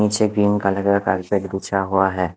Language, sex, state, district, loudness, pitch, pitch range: Hindi, male, Haryana, Rohtak, -20 LUFS, 100 Hz, 95-105 Hz